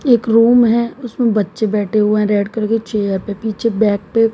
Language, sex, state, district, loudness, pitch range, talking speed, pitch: Hindi, female, Haryana, Jhajjar, -15 LUFS, 210-230 Hz, 220 wpm, 220 Hz